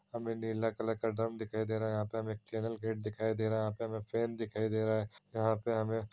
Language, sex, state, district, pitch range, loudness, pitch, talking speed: Hindi, male, Bihar, East Champaran, 110-115 Hz, -36 LUFS, 110 Hz, 225 wpm